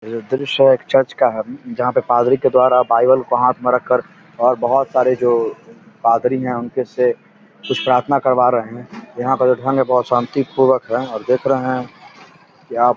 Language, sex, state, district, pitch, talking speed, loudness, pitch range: Hindi, male, Bihar, Samastipur, 125 Hz, 210 wpm, -16 LUFS, 125-135 Hz